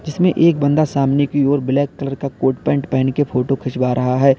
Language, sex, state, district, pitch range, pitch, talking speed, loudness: Hindi, male, Uttar Pradesh, Lalitpur, 130-145 Hz, 140 Hz, 230 wpm, -17 LUFS